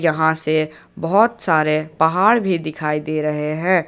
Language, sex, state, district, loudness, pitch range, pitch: Hindi, male, Jharkhand, Ranchi, -18 LUFS, 155-185 Hz, 160 Hz